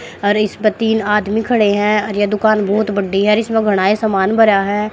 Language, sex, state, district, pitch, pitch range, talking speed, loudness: Hindi, female, Haryana, Jhajjar, 210 Hz, 205-215 Hz, 245 wpm, -15 LUFS